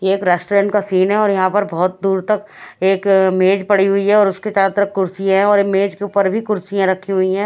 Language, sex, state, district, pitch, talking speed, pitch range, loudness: Hindi, female, Chhattisgarh, Raipur, 195 Hz, 275 wpm, 190-205 Hz, -16 LUFS